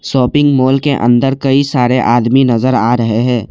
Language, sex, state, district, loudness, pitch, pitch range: Hindi, male, Assam, Kamrup Metropolitan, -11 LUFS, 130 Hz, 120-135 Hz